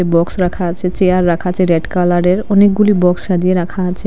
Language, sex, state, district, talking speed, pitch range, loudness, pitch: Bengali, female, Assam, Hailakandi, 190 wpm, 175-185 Hz, -14 LUFS, 180 Hz